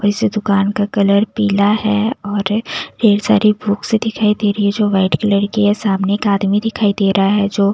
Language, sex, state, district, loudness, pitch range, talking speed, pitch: Hindi, female, Bihar, Patna, -15 LUFS, 200-215 Hz, 215 wpm, 205 Hz